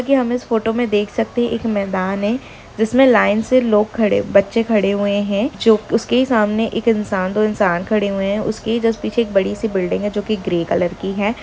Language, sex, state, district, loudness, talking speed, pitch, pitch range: Hindi, female, Jharkhand, Sahebganj, -17 LUFS, 240 wpm, 215 Hz, 200-230 Hz